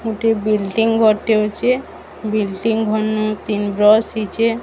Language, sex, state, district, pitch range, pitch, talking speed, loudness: Odia, female, Odisha, Sambalpur, 210-225 Hz, 215 Hz, 105 wpm, -17 LUFS